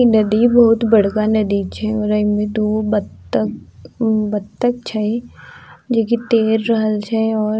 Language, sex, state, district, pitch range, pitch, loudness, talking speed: Maithili, female, Bihar, Sitamarhi, 210-230 Hz, 215 Hz, -17 LUFS, 150 wpm